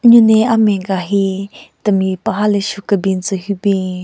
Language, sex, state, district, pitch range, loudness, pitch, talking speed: Rengma, female, Nagaland, Kohima, 190-210 Hz, -15 LUFS, 200 Hz, 195 wpm